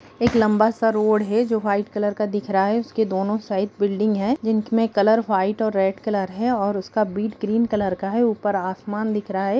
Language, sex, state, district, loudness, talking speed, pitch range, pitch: Hindi, female, Bihar, East Champaran, -21 LUFS, 230 wpm, 200-220 Hz, 210 Hz